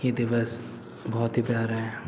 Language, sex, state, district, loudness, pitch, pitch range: Hindi, male, Uttar Pradesh, Muzaffarnagar, -28 LUFS, 115 Hz, 115-120 Hz